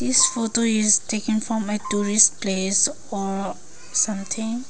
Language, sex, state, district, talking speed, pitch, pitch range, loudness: English, female, Arunachal Pradesh, Lower Dibang Valley, 130 wpm, 215 Hz, 205-230 Hz, -20 LUFS